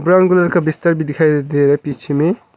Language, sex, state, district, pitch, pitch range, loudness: Hindi, male, Arunachal Pradesh, Longding, 155 Hz, 145-175 Hz, -15 LUFS